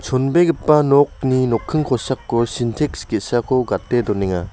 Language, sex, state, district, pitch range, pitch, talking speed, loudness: Garo, male, Meghalaya, West Garo Hills, 115-145 Hz, 130 Hz, 105 wpm, -18 LUFS